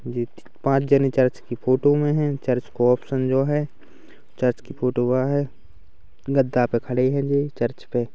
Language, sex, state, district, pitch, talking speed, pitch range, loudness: Hindi, male, Chhattisgarh, Rajnandgaon, 130 Hz, 200 wpm, 120-140 Hz, -22 LUFS